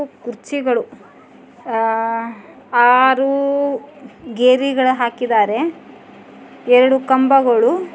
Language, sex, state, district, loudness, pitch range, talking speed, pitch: Kannada, male, Karnataka, Dharwad, -15 LUFS, 240-275 Hz, 55 wpm, 255 Hz